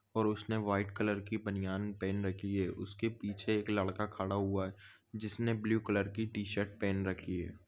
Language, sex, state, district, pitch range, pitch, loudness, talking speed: Hindi, male, Goa, North and South Goa, 95-105 Hz, 100 Hz, -37 LUFS, 195 wpm